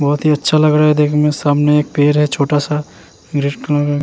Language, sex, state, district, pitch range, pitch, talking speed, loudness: Hindi, male, Uttarakhand, Tehri Garhwal, 145-150 Hz, 150 Hz, 240 wpm, -14 LUFS